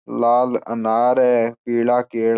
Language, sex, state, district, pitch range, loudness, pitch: Marwari, male, Rajasthan, Churu, 115-125 Hz, -18 LUFS, 120 Hz